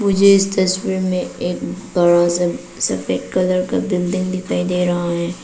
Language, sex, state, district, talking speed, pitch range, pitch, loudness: Hindi, female, Arunachal Pradesh, Papum Pare, 165 wpm, 175-190 Hz, 185 Hz, -18 LUFS